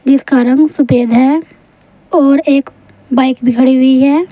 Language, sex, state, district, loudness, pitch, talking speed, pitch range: Hindi, female, Uttar Pradesh, Saharanpur, -10 LUFS, 270 Hz, 155 wpm, 260-290 Hz